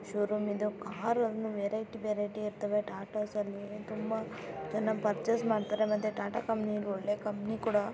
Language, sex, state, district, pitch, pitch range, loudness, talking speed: Kannada, female, Karnataka, Raichur, 210 Hz, 205-220 Hz, -34 LUFS, 130 wpm